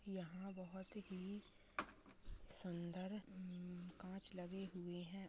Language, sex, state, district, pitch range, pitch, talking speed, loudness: Hindi, male, Chhattisgarh, Rajnandgaon, 180-195 Hz, 185 Hz, 100 wpm, -51 LUFS